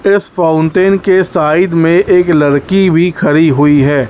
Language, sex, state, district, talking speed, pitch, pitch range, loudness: Hindi, male, Chhattisgarh, Raipur, 160 wpm, 170 Hz, 150-190 Hz, -10 LUFS